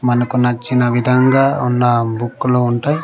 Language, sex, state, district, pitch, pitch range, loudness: Telugu, male, Andhra Pradesh, Manyam, 125 Hz, 120-125 Hz, -15 LUFS